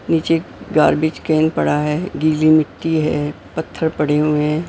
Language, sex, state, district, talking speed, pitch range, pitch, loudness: Hindi, male, Maharashtra, Mumbai Suburban, 155 wpm, 150-160 Hz, 155 Hz, -17 LUFS